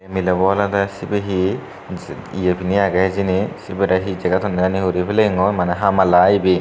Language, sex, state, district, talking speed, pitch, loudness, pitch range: Chakma, male, Tripura, Dhalai, 180 wpm, 95 Hz, -18 LUFS, 90-100 Hz